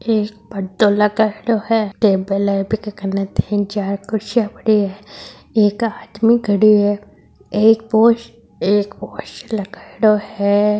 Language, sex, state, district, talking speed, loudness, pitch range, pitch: Hindi, female, Rajasthan, Nagaur, 130 wpm, -17 LUFS, 200-220 Hz, 210 Hz